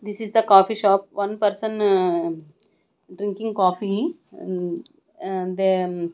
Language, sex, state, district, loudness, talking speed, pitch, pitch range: English, female, Punjab, Kapurthala, -22 LUFS, 115 wpm, 195 Hz, 185-215 Hz